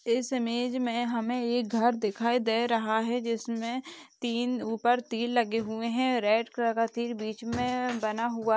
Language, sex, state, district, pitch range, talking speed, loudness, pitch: Hindi, female, West Bengal, Dakshin Dinajpur, 230-245 Hz, 175 wpm, -29 LUFS, 235 Hz